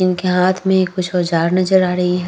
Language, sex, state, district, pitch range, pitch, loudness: Hindi, female, Bihar, Vaishali, 180-185 Hz, 185 Hz, -16 LUFS